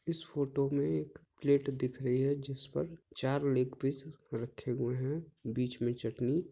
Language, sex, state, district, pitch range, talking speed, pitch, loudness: Hindi, male, Jharkhand, Jamtara, 125-140 Hz, 175 wpm, 135 Hz, -35 LUFS